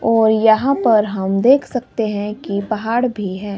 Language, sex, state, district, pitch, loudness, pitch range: Hindi, male, Himachal Pradesh, Shimla, 220 Hz, -17 LUFS, 205-230 Hz